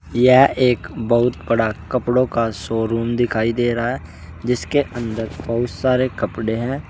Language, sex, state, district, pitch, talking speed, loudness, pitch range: Hindi, male, Uttar Pradesh, Saharanpur, 120 Hz, 150 wpm, -19 LUFS, 110-125 Hz